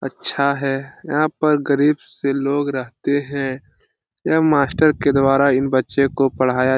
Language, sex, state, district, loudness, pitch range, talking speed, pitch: Hindi, male, Bihar, Lakhisarai, -18 LUFS, 135-145 Hz, 160 wpm, 140 Hz